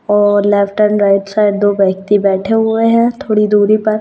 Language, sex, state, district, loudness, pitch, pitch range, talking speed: Hindi, female, Rajasthan, Churu, -12 LUFS, 205 Hz, 200-215 Hz, 195 wpm